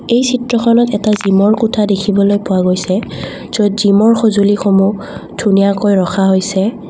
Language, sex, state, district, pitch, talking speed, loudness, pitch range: Assamese, female, Assam, Kamrup Metropolitan, 205 Hz, 150 wpm, -12 LUFS, 195-220 Hz